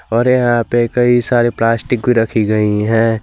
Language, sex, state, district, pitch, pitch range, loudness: Hindi, male, Jharkhand, Garhwa, 115 Hz, 115-120 Hz, -14 LUFS